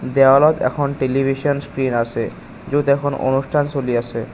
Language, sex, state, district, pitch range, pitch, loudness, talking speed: Assamese, male, Assam, Kamrup Metropolitan, 130-145 Hz, 135 Hz, -18 LUFS, 140 wpm